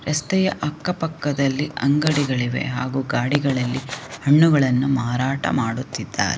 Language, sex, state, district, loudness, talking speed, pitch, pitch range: Kannada, female, Karnataka, Shimoga, -21 LUFS, 85 wpm, 135 Hz, 125-150 Hz